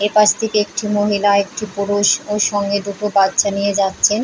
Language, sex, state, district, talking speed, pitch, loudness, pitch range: Bengali, female, West Bengal, Paschim Medinipur, 185 wpm, 205 Hz, -16 LUFS, 200-210 Hz